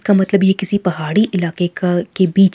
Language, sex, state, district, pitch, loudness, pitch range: Hindi, female, Himachal Pradesh, Shimla, 190 Hz, -16 LUFS, 180-200 Hz